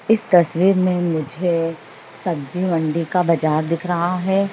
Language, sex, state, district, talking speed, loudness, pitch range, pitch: Hindi, female, Uttar Pradesh, Hamirpur, 145 wpm, -19 LUFS, 165-185 Hz, 175 Hz